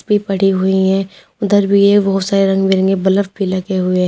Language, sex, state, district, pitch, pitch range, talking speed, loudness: Hindi, female, Uttar Pradesh, Lalitpur, 195 Hz, 190-200 Hz, 190 wpm, -14 LUFS